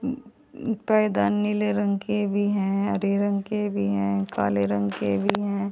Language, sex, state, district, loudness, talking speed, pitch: Hindi, female, Haryana, Rohtak, -24 LUFS, 190 wpm, 200 Hz